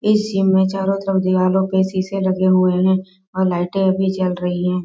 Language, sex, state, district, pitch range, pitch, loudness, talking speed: Hindi, female, Bihar, East Champaran, 185-190 Hz, 190 Hz, -18 LUFS, 200 wpm